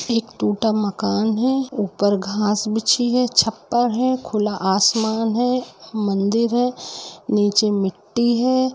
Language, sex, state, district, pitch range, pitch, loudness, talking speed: Hindi, female, Jharkhand, Jamtara, 210-245 Hz, 220 Hz, -19 LUFS, 125 wpm